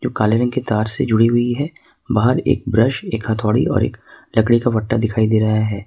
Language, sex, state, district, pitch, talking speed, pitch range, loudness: Hindi, male, Jharkhand, Ranchi, 115 Hz, 225 wpm, 110-125 Hz, -17 LUFS